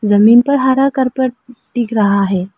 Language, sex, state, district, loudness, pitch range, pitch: Hindi, female, Arunachal Pradesh, Lower Dibang Valley, -13 LUFS, 205-260 Hz, 240 Hz